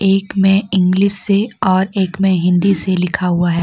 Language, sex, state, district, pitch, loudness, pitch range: Hindi, female, Jharkhand, Deoghar, 190 Hz, -14 LUFS, 180-195 Hz